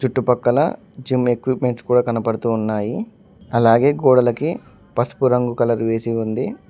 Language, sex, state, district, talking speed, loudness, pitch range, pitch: Telugu, male, Telangana, Mahabubabad, 115 wpm, -19 LUFS, 115-130 Hz, 120 Hz